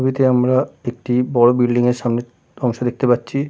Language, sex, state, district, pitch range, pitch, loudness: Bengali, male, West Bengal, Kolkata, 120-130 Hz, 125 Hz, -18 LUFS